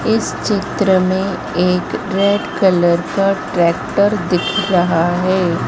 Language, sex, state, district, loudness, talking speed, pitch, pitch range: Hindi, female, Madhya Pradesh, Dhar, -16 LUFS, 115 wpm, 185 Hz, 175-200 Hz